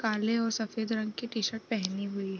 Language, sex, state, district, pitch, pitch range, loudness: Hindi, female, Bihar, East Champaran, 220 Hz, 205-225 Hz, -32 LUFS